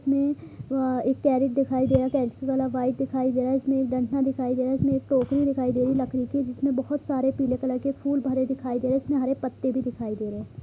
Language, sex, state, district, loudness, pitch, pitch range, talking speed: Hindi, female, Bihar, Purnia, -25 LUFS, 265 Hz, 255-270 Hz, 275 wpm